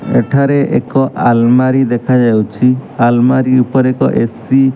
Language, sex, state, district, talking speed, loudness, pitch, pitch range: Odia, male, Odisha, Malkangiri, 115 wpm, -12 LUFS, 130 Hz, 120-135 Hz